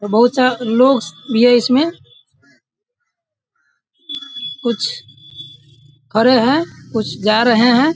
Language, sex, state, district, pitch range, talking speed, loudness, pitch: Hindi, male, Bihar, Sitamarhi, 200-270 Hz, 105 wpm, -15 LUFS, 240 Hz